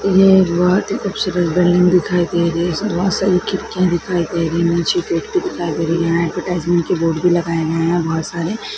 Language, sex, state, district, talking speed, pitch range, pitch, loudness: Hindi, female, Andhra Pradesh, Krishna, 225 wpm, 170-185 Hz, 175 Hz, -17 LUFS